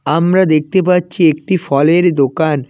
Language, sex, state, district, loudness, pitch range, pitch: Bengali, male, West Bengal, Cooch Behar, -13 LUFS, 150-180 Hz, 165 Hz